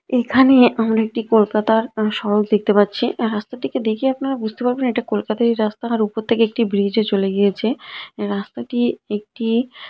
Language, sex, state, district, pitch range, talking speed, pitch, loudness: Bengali, female, West Bengal, Kolkata, 210-240 Hz, 160 wpm, 225 Hz, -19 LUFS